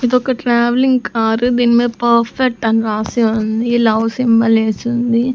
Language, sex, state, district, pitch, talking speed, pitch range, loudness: Telugu, female, Andhra Pradesh, Sri Satya Sai, 235 Hz, 135 wpm, 225-245 Hz, -14 LUFS